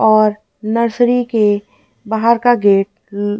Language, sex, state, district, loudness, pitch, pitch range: Hindi, female, Delhi, New Delhi, -15 LUFS, 215 Hz, 205-235 Hz